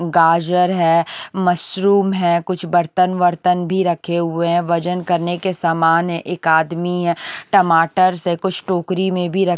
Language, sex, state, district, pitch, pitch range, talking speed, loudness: Hindi, female, Punjab, Kapurthala, 175 Hz, 170-180 Hz, 170 wpm, -17 LUFS